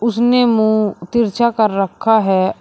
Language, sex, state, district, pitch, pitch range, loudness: Hindi, male, Uttar Pradesh, Shamli, 220 Hz, 205-235 Hz, -15 LUFS